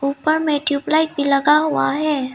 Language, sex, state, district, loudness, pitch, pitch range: Hindi, female, Arunachal Pradesh, Lower Dibang Valley, -18 LUFS, 290 Hz, 280-310 Hz